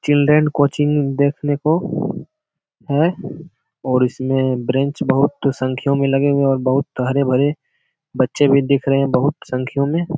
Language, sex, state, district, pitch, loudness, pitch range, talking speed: Hindi, male, Bihar, Jamui, 140 Hz, -17 LUFS, 130-145 Hz, 145 wpm